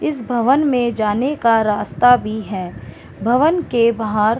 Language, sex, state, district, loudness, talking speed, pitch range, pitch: Hindi, female, Chhattisgarh, Bilaspur, -17 LUFS, 165 wpm, 215-255 Hz, 235 Hz